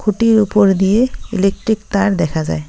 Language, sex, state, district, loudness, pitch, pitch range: Bengali, female, West Bengal, Cooch Behar, -15 LUFS, 200 Hz, 190-215 Hz